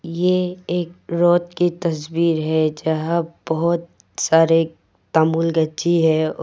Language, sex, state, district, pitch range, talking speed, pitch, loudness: Hindi, female, Arunachal Pradesh, Papum Pare, 160-170 Hz, 95 wpm, 165 Hz, -19 LUFS